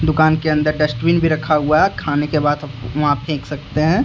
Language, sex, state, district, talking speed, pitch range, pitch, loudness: Hindi, male, Jharkhand, Deoghar, 250 wpm, 145-155 Hz, 150 Hz, -17 LUFS